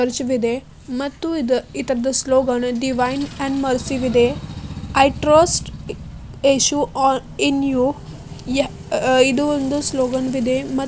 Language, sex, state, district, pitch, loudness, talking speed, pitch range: Kannada, female, Karnataka, Belgaum, 265 Hz, -19 LUFS, 100 wpm, 255-275 Hz